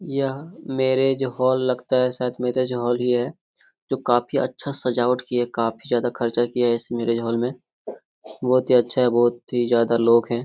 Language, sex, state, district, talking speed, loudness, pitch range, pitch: Hindi, male, Jharkhand, Jamtara, 190 wpm, -22 LUFS, 120-130 Hz, 125 Hz